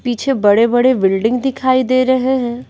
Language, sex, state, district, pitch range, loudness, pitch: Hindi, female, Bihar, Patna, 230-260 Hz, -14 LUFS, 255 Hz